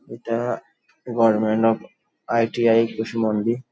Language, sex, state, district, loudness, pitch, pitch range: Bengali, male, West Bengal, Dakshin Dinajpur, -22 LUFS, 115 Hz, 110-115 Hz